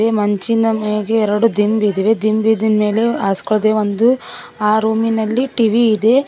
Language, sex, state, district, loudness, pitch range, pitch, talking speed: Kannada, female, Karnataka, Koppal, -15 LUFS, 210-225 Hz, 220 Hz, 115 wpm